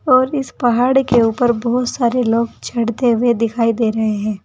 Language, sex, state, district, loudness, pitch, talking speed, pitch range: Hindi, female, Uttar Pradesh, Saharanpur, -16 LUFS, 235 Hz, 190 wpm, 230-250 Hz